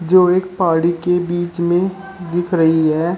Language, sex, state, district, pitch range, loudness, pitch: Hindi, male, Uttar Pradesh, Shamli, 170-180 Hz, -16 LUFS, 175 Hz